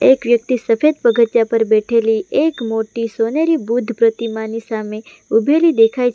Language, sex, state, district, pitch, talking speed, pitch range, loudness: Gujarati, female, Gujarat, Valsad, 230 Hz, 145 wpm, 225-250 Hz, -16 LUFS